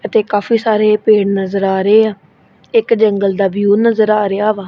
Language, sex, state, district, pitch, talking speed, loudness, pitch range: Punjabi, female, Punjab, Kapurthala, 210 Hz, 205 wpm, -13 LUFS, 200-220 Hz